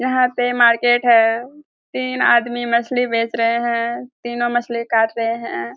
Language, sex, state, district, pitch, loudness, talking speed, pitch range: Hindi, female, Bihar, Kishanganj, 240 Hz, -17 LUFS, 155 wpm, 230-245 Hz